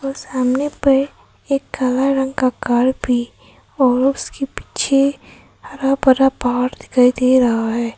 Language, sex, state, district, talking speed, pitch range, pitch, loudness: Hindi, female, Arunachal Pradesh, Papum Pare, 135 wpm, 250-275 Hz, 260 Hz, -17 LUFS